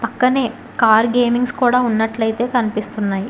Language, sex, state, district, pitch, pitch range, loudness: Telugu, female, Telangana, Hyderabad, 240 Hz, 220-245 Hz, -17 LUFS